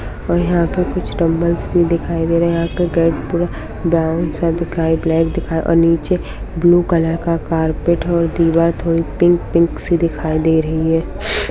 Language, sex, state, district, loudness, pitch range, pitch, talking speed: Hindi, female, Bihar, Samastipur, -16 LUFS, 165-170 Hz, 165 Hz, 180 wpm